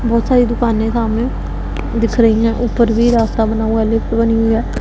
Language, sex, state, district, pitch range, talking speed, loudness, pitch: Hindi, female, Punjab, Pathankot, 225-235 Hz, 210 wpm, -15 LUFS, 230 Hz